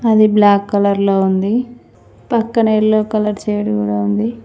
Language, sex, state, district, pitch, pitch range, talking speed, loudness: Telugu, female, Telangana, Mahabubabad, 210 Hz, 190-215 Hz, 150 wpm, -15 LUFS